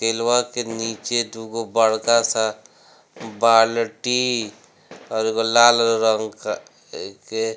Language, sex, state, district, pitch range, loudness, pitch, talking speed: Bhojpuri, male, Bihar, Gopalganj, 110-115 Hz, -20 LUFS, 115 Hz, 110 wpm